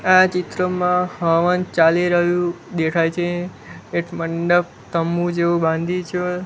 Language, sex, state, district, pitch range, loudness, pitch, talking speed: Gujarati, male, Gujarat, Gandhinagar, 170-180 Hz, -19 LUFS, 175 Hz, 120 wpm